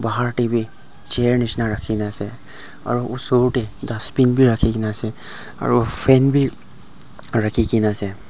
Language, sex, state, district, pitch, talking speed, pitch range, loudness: Nagamese, male, Nagaland, Dimapur, 115 Hz, 135 wpm, 110-125 Hz, -19 LUFS